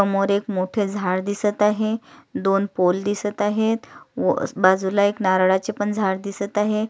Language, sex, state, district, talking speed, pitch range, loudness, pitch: Marathi, female, Maharashtra, Sindhudurg, 140 wpm, 190-210 Hz, -21 LUFS, 200 Hz